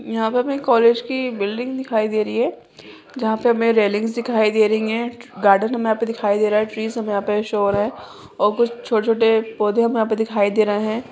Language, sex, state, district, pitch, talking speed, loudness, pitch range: Hindi, female, Bihar, Purnia, 220 Hz, 245 wpm, -19 LUFS, 215-235 Hz